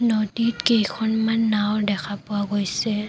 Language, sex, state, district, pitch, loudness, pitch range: Assamese, female, Assam, Kamrup Metropolitan, 215 Hz, -22 LUFS, 205-225 Hz